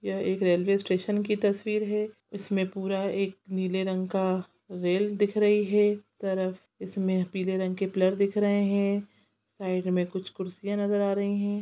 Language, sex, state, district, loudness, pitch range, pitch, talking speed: Hindi, female, Chhattisgarh, Sukma, -28 LUFS, 185-205 Hz, 195 Hz, 170 wpm